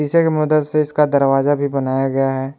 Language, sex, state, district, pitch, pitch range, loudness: Hindi, male, Jharkhand, Palamu, 140 Hz, 135-150 Hz, -17 LUFS